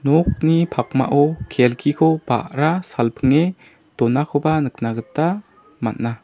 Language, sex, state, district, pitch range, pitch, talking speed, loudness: Garo, male, Meghalaya, South Garo Hills, 120-160 Hz, 145 Hz, 85 wpm, -19 LUFS